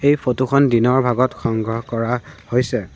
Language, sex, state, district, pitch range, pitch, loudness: Assamese, male, Assam, Sonitpur, 115-130 Hz, 125 Hz, -18 LUFS